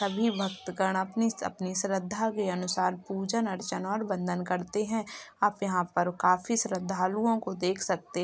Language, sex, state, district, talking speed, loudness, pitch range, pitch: Hindi, male, Uttar Pradesh, Jalaun, 155 wpm, -30 LUFS, 185-210 Hz, 195 Hz